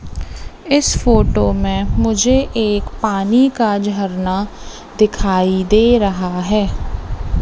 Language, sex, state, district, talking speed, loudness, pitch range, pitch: Hindi, female, Madhya Pradesh, Katni, 95 wpm, -15 LUFS, 165-220 Hz, 200 Hz